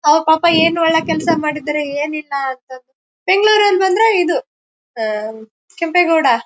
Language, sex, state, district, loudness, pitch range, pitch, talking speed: Kannada, female, Karnataka, Bellary, -15 LUFS, 275-350 Hz, 320 Hz, 140 wpm